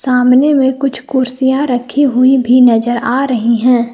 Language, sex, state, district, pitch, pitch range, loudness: Hindi, female, Jharkhand, Palamu, 255 Hz, 245-265 Hz, -11 LUFS